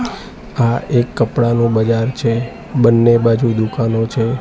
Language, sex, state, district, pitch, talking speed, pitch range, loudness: Gujarati, male, Gujarat, Gandhinagar, 115 Hz, 120 wpm, 115-120 Hz, -15 LUFS